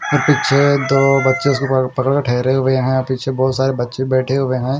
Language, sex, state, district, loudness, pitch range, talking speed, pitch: Hindi, male, Punjab, Fazilka, -16 LUFS, 130-135 Hz, 215 wpm, 130 Hz